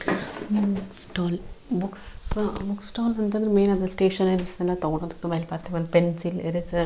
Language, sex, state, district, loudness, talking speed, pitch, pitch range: Kannada, female, Karnataka, Shimoga, -23 LUFS, 120 wpm, 185 Hz, 170-200 Hz